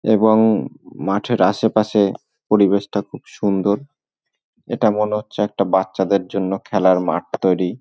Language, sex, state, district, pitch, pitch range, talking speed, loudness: Bengali, male, West Bengal, North 24 Parganas, 100 Hz, 95-110 Hz, 125 wpm, -18 LUFS